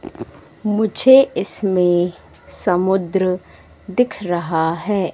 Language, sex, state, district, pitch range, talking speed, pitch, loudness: Hindi, female, Madhya Pradesh, Katni, 175-210 Hz, 70 wpm, 190 Hz, -18 LUFS